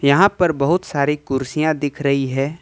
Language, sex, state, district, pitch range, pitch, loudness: Hindi, male, Jharkhand, Ranchi, 140-160 Hz, 145 Hz, -18 LUFS